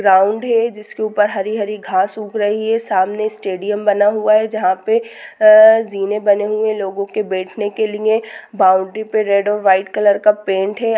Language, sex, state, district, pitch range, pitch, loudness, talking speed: Hindi, female, Jharkhand, Jamtara, 200-220 Hz, 210 Hz, -15 LUFS, 195 wpm